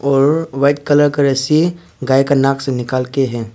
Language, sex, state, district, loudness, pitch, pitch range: Hindi, male, Arunachal Pradesh, Papum Pare, -15 LUFS, 135 Hz, 130-145 Hz